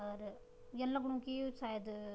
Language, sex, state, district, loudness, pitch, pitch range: Garhwali, female, Uttarakhand, Tehri Garhwal, -42 LUFS, 255 Hz, 210-265 Hz